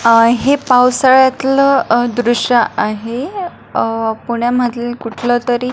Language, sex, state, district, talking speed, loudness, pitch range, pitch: Marathi, female, Maharashtra, Pune, 95 wpm, -14 LUFS, 235-260 Hz, 240 Hz